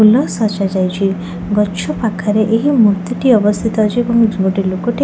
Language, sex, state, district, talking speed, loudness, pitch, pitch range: Odia, female, Odisha, Khordha, 155 wpm, -14 LUFS, 210 Hz, 190-225 Hz